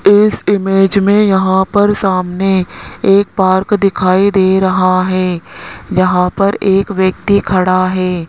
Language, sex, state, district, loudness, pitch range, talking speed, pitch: Hindi, male, Rajasthan, Jaipur, -12 LUFS, 185-200 Hz, 130 wpm, 190 Hz